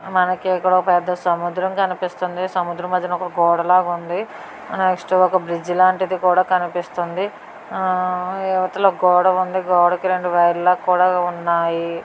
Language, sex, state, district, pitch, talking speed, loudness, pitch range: Telugu, female, Karnataka, Bellary, 180 Hz, 130 wpm, -18 LUFS, 175-185 Hz